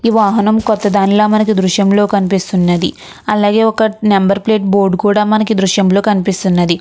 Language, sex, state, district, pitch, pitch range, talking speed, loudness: Telugu, female, Andhra Pradesh, Krishna, 205 Hz, 195-215 Hz, 150 wpm, -12 LUFS